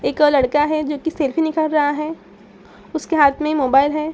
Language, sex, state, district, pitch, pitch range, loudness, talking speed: Hindi, female, Bihar, Saran, 300 Hz, 290-310 Hz, -18 LUFS, 220 wpm